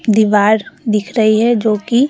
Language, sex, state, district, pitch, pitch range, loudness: Hindi, female, Bihar, Vaishali, 215 Hz, 210-230 Hz, -13 LUFS